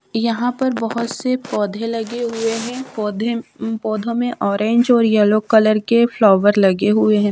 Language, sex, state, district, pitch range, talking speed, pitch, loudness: Hindi, female, Chhattisgarh, Raipur, 215-235 Hz, 165 wpm, 225 Hz, -17 LUFS